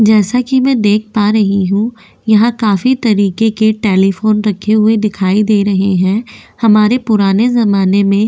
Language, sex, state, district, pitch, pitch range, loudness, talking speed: Hindi, female, Goa, North and South Goa, 215 Hz, 200-220 Hz, -12 LUFS, 165 wpm